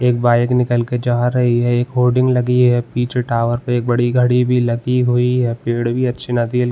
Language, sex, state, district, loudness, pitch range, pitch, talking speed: Hindi, male, Uttarakhand, Uttarkashi, -16 LUFS, 120-125 Hz, 125 Hz, 225 wpm